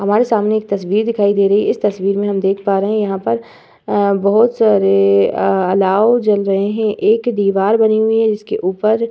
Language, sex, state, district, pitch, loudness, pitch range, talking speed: Hindi, female, Uttar Pradesh, Hamirpur, 205 Hz, -15 LUFS, 195-215 Hz, 200 wpm